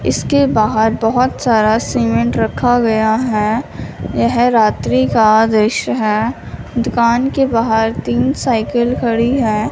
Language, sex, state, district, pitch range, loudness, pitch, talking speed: Hindi, female, Punjab, Fazilka, 210-235 Hz, -14 LUFS, 220 Hz, 125 wpm